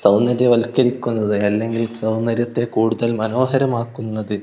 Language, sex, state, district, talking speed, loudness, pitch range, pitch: Malayalam, male, Kerala, Kozhikode, 70 wpm, -19 LUFS, 110-120 Hz, 115 Hz